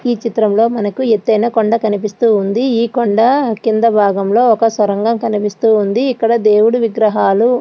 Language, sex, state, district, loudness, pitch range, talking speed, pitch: Telugu, female, Andhra Pradesh, Srikakulam, -13 LUFS, 210-235 Hz, 140 wpm, 225 Hz